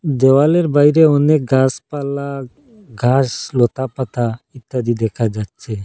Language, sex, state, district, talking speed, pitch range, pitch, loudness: Bengali, male, Assam, Hailakandi, 90 wpm, 120-145 Hz, 130 Hz, -16 LUFS